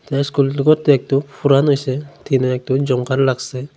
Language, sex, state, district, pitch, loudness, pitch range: Bengali, male, Tripura, Unakoti, 135 Hz, -17 LUFS, 130-140 Hz